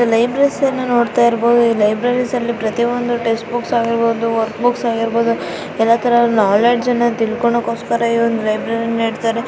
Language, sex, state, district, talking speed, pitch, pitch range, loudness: Kannada, female, Karnataka, Shimoga, 165 wpm, 235 Hz, 230-240 Hz, -16 LUFS